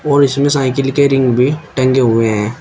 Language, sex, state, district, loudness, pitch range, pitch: Hindi, male, Uttar Pradesh, Shamli, -13 LUFS, 125-140 Hz, 135 Hz